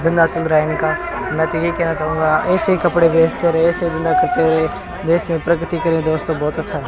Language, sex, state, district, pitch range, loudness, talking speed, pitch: Hindi, male, Rajasthan, Bikaner, 160-170 Hz, -17 LUFS, 235 wpm, 165 Hz